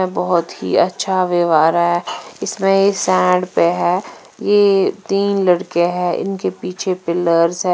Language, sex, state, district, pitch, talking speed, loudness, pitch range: Hindi, female, Punjab, Fazilka, 180 Hz, 130 wpm, -16 LUFS, 170-195 Hz